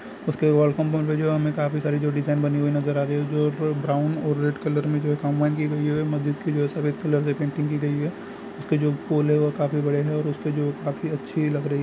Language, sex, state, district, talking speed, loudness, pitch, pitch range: Hindi, male, Chhattisgarh, Bilaspur, 265 wpm, -24 LUFS, 150 Hz, 145-150 Hz